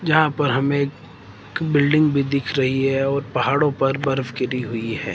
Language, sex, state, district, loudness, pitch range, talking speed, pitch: Hindi, male, Himachal Pradesh, Shimla, -20 LUFS, 130-145 Hz, 185 wpm, 140 Hz